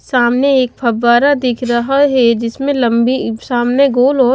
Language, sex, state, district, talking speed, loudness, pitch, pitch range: Hindi, female, Chhattisgarh, Raipur, 150 wpm, -13 LUFS, 250 Hz, 240-270 Hz